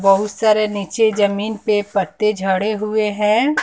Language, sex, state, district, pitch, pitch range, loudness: Hindi, female, Bihar, West Champaran, 210 Hz, 200-215 Hz, -18 LUFS